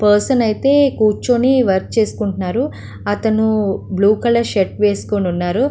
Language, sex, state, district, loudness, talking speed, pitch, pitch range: Telugu, female, Andhra Pradesh, Visakhapatnam, -16 LUFS, 95 wpm, 215 Hz, 205-240 Hz